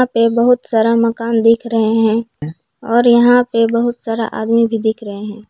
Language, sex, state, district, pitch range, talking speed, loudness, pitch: Hindi, female, Jharkhand, Palamu, 220-235 Hz, 195 wpm, -14 LUFS, 230 Hz